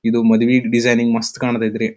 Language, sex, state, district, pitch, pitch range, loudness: Kannada, male, Karnataka, Dharwad, 115 Hz, 115-120 Hz, -16 LUFS